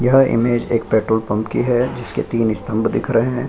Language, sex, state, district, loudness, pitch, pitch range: Hindi, male, Bihar, Lakhisarai, -18 LUFS, 115 Hz, 110-125 Hz